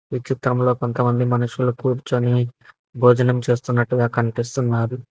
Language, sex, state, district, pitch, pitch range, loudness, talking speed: Telugu, male, Telangana, Hyderabad, 125 Hz, 120-125 Hz, -20 LUFS, 95 wpm